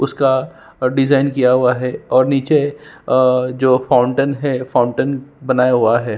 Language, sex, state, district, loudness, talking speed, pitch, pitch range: Hindi, male, Chhattisgarh, Sukma, -16 LUFS, 145 wpm, 130 Hz, 125-140 Hz